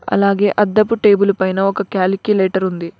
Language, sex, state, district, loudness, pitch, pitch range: Telugu, female, Telangana, Mahabubabad, -15 LUFS, 200 Hz, 190-205 Hz